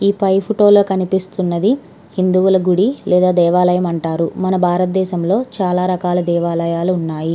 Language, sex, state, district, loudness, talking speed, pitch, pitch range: Telugu, female, Andhra Pradesh, Krishna, -15 LUFS, 145 wpm, 185 Hz, 175-190 Hz